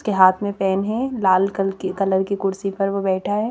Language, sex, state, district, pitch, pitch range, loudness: Hindi, female, Madhya Pradesh, Bhopal, 195 Hz, 190-205 Hz, -20 LUFS